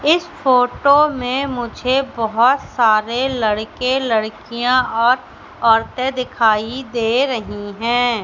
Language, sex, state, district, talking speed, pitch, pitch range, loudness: Hindi, female, Madhya Pradesh, Katni, 100 wpm, 245 Hz, 225-260 Hz, -17 LUFS